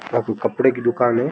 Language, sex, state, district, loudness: Rajasthani, male, Rajasthan, Churu, -20 LUFS